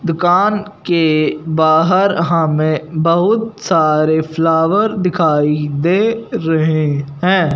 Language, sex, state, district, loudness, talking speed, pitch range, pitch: Hindi, male, Punjab, Fazilka, -14 LUFS, 85 wpm, 155-185 Hz, 165 Hz